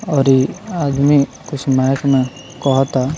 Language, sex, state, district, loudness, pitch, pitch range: Bhojpuri, male, Bihar, Muzaffarpur, -16 LUFS, 135 Hz, 130-145 Hz